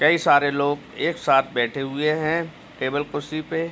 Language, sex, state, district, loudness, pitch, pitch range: Hindi, male, Uttar Pradesh, Jalaun, -22 LUFS, 145 Hz, 140-155 Hz